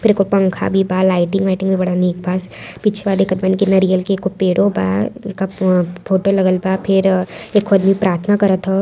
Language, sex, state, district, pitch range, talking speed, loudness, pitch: Hindi, female, Uttar Pradesh, Varanasi, 185-195 Hz, 205 wpm, -16 LUFS, 190 Hz